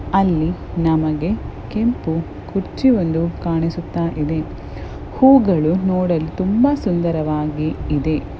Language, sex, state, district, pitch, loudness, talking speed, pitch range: Kannada, female, Karnataka, Gulbarga, 170 Hz, -18 LUFS, 80 wpm, 160-195 Hz